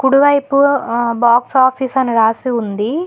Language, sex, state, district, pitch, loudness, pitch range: Telugu, female, Telangana, Hyderabad, 260 Hz, -14 LUFS, 235-275 Hz